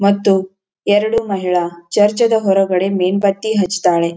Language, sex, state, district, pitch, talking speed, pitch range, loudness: Kannada, female, Karnataka, Belgaum, 195 Hz, 115 wpm, 185-205 Hz, -15 LUFS